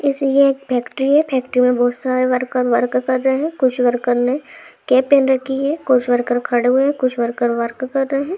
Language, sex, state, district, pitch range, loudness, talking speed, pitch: Hindi, female, Jharkhand, Sahebganj, 245-275 Hz, -17 LUFS, 230 wpm, 255 Hz